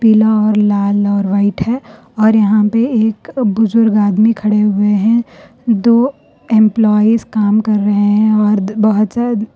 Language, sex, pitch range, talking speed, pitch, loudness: Urdu, female, 210-225 Hz, 145 wpm, 215 Hz, -13 LUFS